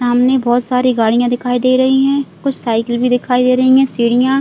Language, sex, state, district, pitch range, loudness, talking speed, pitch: Hindi, female, Chhattisgarh, Bilaspur, 245-260 Hz, -13 LUFS, 215 wpm, 250 Hz